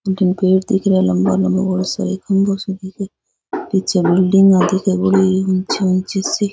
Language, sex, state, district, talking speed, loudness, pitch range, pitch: Rajasthani, female, Rajasthan, Nagaur, 120 wpm, -16 LUFS, 185-195 Hz, 190 Hz